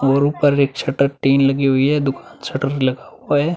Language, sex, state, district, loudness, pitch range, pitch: Hindi, male, Uttar Pradesh, Budaun, -17 LUFS, 135-145 Hz, 140 Hz